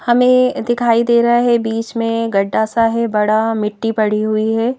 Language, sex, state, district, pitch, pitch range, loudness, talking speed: Hindi, female, Madhya Pradesh, Bhopal, 230 Hz, 215-240 Hz, -15 LUFS, 190 wpm